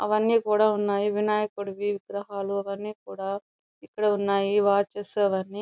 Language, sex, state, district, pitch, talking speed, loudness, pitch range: Telugu, female, Andhra Pradesh, Chittoor, 205 Hz, 130 wpm, -26 LUFS, 200-210 Hz